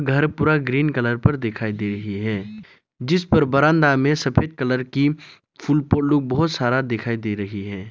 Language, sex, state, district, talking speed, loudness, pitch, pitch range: Hindi, male, Arunachal Pradesh, Lower Dibang Valley, 180 wpm, -20 LUFS, 135 Hz, 110-150 Hz